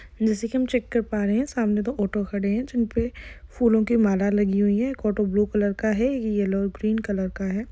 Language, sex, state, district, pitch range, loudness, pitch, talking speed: Hindi, female, Jharkhand, Sahebganj, 205-235 Hz, -24 LUFS, 215 Hz, 240 wpm